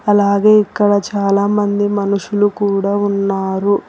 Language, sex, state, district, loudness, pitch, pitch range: Telugu, female, Telangana, Hyderabad, -15 LUFS, 200 Hz, 200-205 Hz